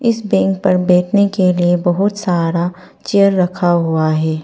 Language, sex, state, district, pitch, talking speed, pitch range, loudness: Hindi, female, Arunachal Pradesh, Papum Pare, 180 Hz, 160 wpm, 175-195 Hz, -15 LUFS